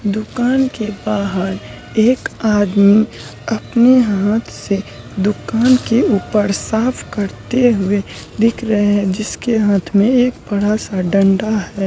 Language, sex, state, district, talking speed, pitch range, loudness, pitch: Hindi, female, Bihar, Muzaffarpur, 120 wpm, 200-230 Hz, -15 LUFS, 210 Hz